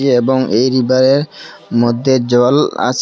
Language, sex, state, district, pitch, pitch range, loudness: Bengali, male, Assam, Hailakandi, 130 Hz, 120-130 Hz, -13 LUFS